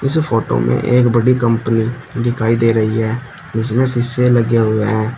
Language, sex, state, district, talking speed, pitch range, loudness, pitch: Hindi, male, Uttar Pradesh, Shamli, 175 wpm, 110-125 Hz, -15 LUFS, 115 Hz